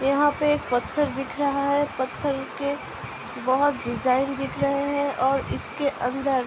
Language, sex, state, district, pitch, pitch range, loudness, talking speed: Hindi, female, Uttar Pradesh, Budaun, 275 Hz, 265-285 Hz, -25 LUFS, 175 wpm